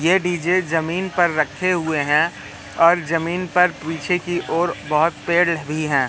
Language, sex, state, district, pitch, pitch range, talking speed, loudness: Hindi, male, Madhya Pradesh, Katni, 170 Hz, 155-180 Hz, 175 wpm, -19 LUFS